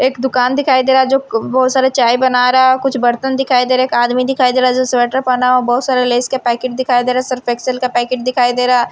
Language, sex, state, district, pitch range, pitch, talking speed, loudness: Hindi, female, Himachal Pradesh, Shimla, 245-260 Hz, 255 Hz, 325 wpm, -13 LUFS